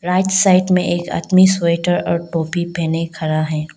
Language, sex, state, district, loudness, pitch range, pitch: Hindi, female, Arunachal Pradesh, Lower Dibang Valley, -16 LUFS, 165-185 Hz, 170 Hz